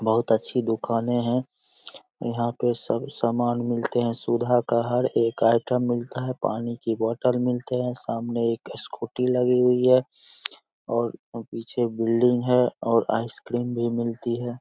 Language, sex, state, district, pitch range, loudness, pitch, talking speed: Hindi, male, Bihar, Begusarai, 115-125 Hz, -25 LUFS, 120 Hz, 150 wpm